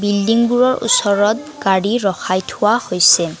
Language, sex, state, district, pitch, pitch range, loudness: Assamese, female, Assam, Kamrup Metropolitan, 205 Hz, 190-240 Hz, -15 LUFS